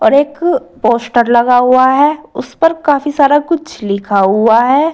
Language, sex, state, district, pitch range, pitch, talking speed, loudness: Hindi, female, Uttar Pradesh, Saharanpur, 235-295 Hz, 270 Hz, 160 wpm, -11 LUFS